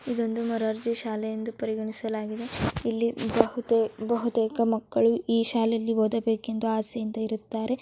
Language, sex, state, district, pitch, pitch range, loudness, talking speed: Kannada, female, Karnataka, Dharwad, 225 Hz, 220-230 Hz, -27 LUFS, 105 wpm